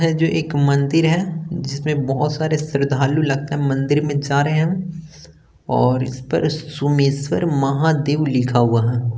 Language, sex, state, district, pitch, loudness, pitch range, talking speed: Hindi, male, Bihar, Gaya, 145 Hz, -19 LUFS, 140-155 Hz, 155 wpm